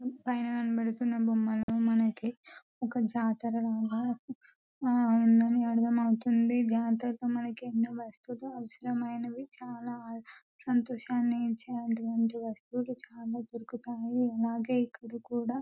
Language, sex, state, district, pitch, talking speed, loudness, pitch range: Telugu, female, Telangana, Nalgonda, 235 Hz, 75 wpm, -31 LUFS, 230-245 Hz